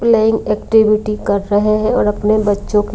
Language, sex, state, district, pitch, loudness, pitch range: Hindi, female, Maharashtra, Mumbai Suburban, 215 Hz, -14 LUFS, 210-220 Hz